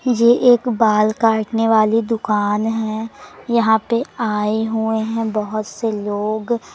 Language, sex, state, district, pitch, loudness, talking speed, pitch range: Hindi, female, Madhya Pradesh, Umaria, 220 Hz, -18 LUFS, 135 wpm, 215-230 Hz